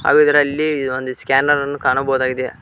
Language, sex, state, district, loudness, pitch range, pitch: Kannada, male, Karnataka, Koppal, -17 LUFS, 130-145 Hz, 135 Hz